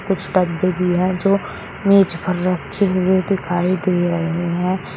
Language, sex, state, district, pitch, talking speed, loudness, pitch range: Hindi, male, Uttar Pradesh, Shamli, 185 Hz, 155 wpm, -18 LUFS, 175-195 Hz